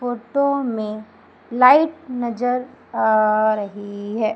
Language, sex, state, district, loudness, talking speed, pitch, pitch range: Hindi, female, Madhya Pradesh, Umaria, -19 LUFS, 95 wpm, 230 Hz, 215-250 Hz